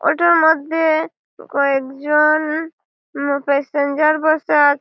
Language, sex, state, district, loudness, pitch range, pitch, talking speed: Bengali, female, West Bengal, Malda, -17 LUFS, 285-320 Hz, 305 Hz, 100 wpm